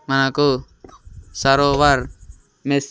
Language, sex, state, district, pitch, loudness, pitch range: Telugu, male, Andhra Pradesh, Sri Satya Sai, 135 Hz, -18 LUFS, 95-140 Hz